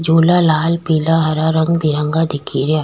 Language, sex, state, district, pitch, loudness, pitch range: Rajasthani, female, Rajasthan, Churu, 160 Hz, -15 LUFS, 155-165 Hz